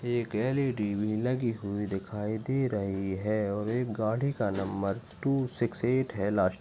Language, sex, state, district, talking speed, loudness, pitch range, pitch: Hindi, male, Chhattisgarh, Bastar, 190 wpm, -30 LUFS, 100-125 Hz, 110 Hz